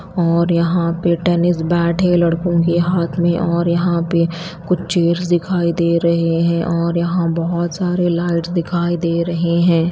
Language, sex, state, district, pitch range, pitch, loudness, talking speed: Hindi, female, Chhattisgarh, Raipur, 170-175 Hz, 170 Hz, -17 LUFS, 170 wpm